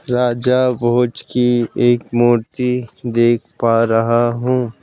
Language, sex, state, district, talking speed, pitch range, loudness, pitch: Hindi, male, Madhya Pradesh, Bhopal, 110 wpm, 115-125 Hz, -16 LUFS, 120 Hz